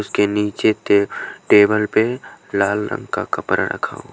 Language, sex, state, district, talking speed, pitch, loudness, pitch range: Hindi, male, Haryana, Jhajjar, 145 wpm, 105 Hz, -18 LUFS, 100-110 Hz